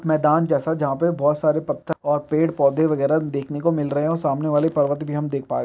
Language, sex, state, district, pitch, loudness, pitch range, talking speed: Hindi, male, Chhattisgarh, Bilaspur, 150 Hz, -21 LUFS, 145-160 Hz, 245 wpm